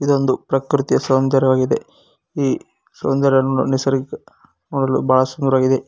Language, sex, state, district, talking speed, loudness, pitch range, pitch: Kannada, male, Karnataka, Koppal, 90 wpm, -18 LUFS, 130-135 Hz, 135 Hz